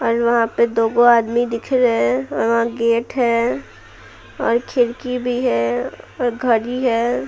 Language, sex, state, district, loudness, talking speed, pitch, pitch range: Hindi, female, Bihar, Patna, -18 LUFS, 155 wpm, 235 Hz, 230-245 Hz